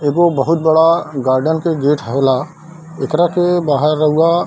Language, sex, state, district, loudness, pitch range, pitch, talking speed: Hindi, male, Bihar, Darbhanga, -14 LUFS, 145-165 Hz, 160 Hz, 160 wpm